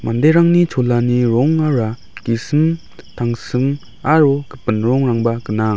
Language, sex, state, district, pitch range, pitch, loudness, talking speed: Garo, male, Meghalaya, West Garo Hills, 115-150 Hz, 125 Hz, -16 LUFS, 95 wpm